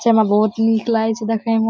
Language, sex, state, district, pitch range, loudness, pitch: Maithili, female, Bihar, Saharsa, 220-225 Hz, -17 LUFS, 225 Hz